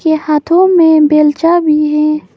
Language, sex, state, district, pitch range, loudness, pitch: Hindi, female, Arunachal Pradesh, Papum Pare, 300-335 Hz, -10 LUFS, 310 Hz